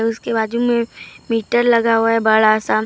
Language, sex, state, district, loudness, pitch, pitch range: Hindi, female, Maharashtra, Gondia, -16 LUFS, 230 Hz, 220-235 Hz